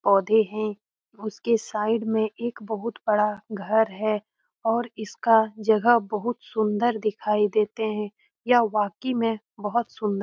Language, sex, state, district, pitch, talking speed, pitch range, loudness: Hindi, female, Bihar, Jamui, 220 Hz, 140 wpm, 210-230 Hz, -24 LUFS